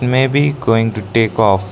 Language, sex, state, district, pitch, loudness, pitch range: English, male, Arunachal Pradesh, Lower Dibang Valley, 115 Hz, -15 LUFS, 110-130 Hz